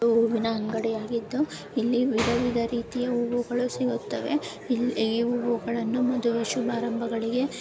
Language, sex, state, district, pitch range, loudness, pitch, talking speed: Kannada, female, Karnataka, Bellary, 230-245 Hz, -27 LUFS, 235 Hz, 120 wpm